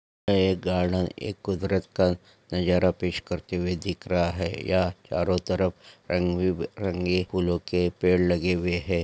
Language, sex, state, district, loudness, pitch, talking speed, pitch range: Hindi, male, Goa, North and South Goa, -26 LUFS, 90 Hz, 160 wpm, 90-95 Hz